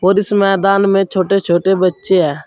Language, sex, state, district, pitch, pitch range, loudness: Hindi, male, Uttar Pradesh, Saharanpur, 190 Hz, 185-195 Hz, -13 LUFS